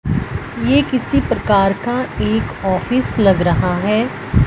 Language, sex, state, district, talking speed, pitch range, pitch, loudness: Hindi, female, Punjab, Fazilka, 120 wpm, 175-240 Hz, 195 Hz, -17 LUFS